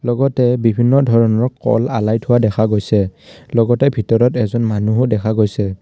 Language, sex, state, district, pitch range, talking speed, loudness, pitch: Assamese, male, Assam, Kamrup Metropolitan, 110-125 Hz, 145 wpm, -15 LUFS, 115 Hz